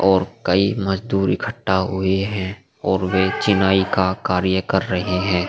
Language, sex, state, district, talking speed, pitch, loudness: Hindi, male, Bihar, Vaishali, 155 wpm, 95 Hz, -20 LUFS